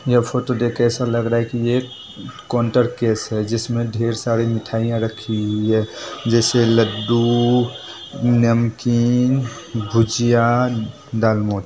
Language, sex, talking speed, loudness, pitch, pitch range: Bhojpuri, male, 135 wpm, -19 LUFS, 115 Hz, 115-120 Hz